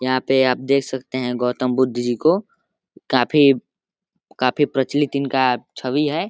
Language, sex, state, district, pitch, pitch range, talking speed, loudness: Hindi, male, Uttar Pradesh, Deoria, 130 Hz, 125-145 Hz, 150 wpm, -19 LUFS